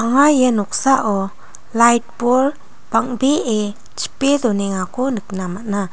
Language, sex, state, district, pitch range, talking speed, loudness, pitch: Garo, female, Meghalaya, North Garo Hills, 200-260 Hz, 100 wpm, -17 LUFS, 235 Hz